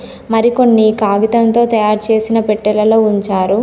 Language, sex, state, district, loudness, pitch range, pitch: Telugu, female, Telangana, Komaram Bheem, -12 LUFS, 210-225 Hz, 220 Hz